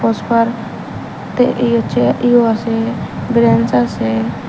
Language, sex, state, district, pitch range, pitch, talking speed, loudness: Bengali, female, Tripura, Unakoti, 145-235 Hz, 230 Hz, 120 wpm, -15 LUFS